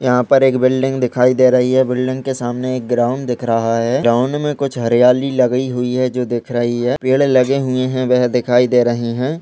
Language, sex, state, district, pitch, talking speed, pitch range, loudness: Hindi, male, Chhattisgarh, Balrampur, 125 Hz, 230 wpm, 120-130 Hz, -15 LUFS